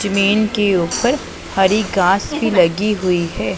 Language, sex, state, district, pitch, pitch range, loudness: Hindi, female, Punjab, Pathankot, 200 Hz, 180-210 Hz, -16 LUFS